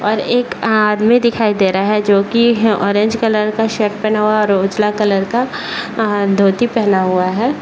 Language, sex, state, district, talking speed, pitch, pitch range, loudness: Hindi, male, Bihar, Jahanabad, 195 wpm, 210 Hz, 200-225 Hz, -14 LUFS